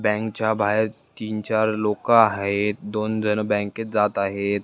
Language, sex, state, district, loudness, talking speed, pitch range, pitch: Marathi, male, Maharashtra, Dhule, -22 LUFS, 115 wpm, 105-110 Hz, 105 Hz